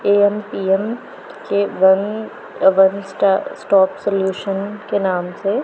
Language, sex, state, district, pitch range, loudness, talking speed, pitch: Hindi, female, Punjab, Pathankot, 190-205 Hz, -17 LUFS, 115 wpm, 200 Hz